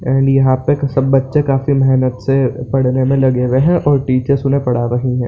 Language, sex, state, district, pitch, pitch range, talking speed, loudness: Hindi, male, Bihar, Saran, 135 Hz, 130-135 Hz, 215 wpm, -14 LUFS